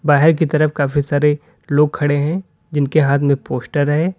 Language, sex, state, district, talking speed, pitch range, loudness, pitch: Hindi, male, Uttar Pradesh, Lalitpur, 185 wpm, 145-155 Hz, -17 LUFS, 150 Hz